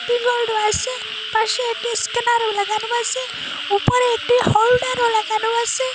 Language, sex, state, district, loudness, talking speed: Bengali, female, Assam, Hailakandi, -19 LUFS, 110 wpm